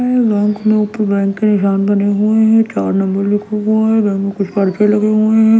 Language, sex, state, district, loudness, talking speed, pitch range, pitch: Hindi, female, Delhi, New Delhi, -14 LUFS, 235 wpm, 200-220 Hz, 210 Hz